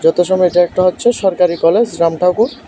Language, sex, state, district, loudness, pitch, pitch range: Bengali, male, Tripura, West Tripura, -13 LUFS, 180 Hz, 175-220 Hz